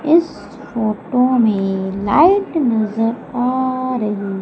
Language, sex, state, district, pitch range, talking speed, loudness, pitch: Hindi, female, Madhya Pradesh, Umaria, 210-265 Hz, 95 wpm, -17 LUFS, 245 Hz